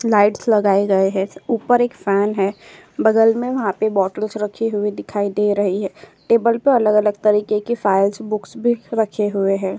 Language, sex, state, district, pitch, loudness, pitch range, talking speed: Hindi, female, Uttar Pradesh, Hamirpur, 210 Hz, -18 LUFS, 200-230 Hz, 185 wpm